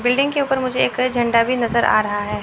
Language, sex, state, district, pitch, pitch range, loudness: Hindi, female, Chandigarh, Chandigarh, 245 Hz, 230-255 Hz, -18 LUFS